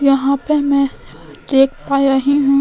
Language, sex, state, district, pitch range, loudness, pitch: Hindi, female, Goa, North and South Goa, 275-280 Hz, -15 LUFS, 275 Hz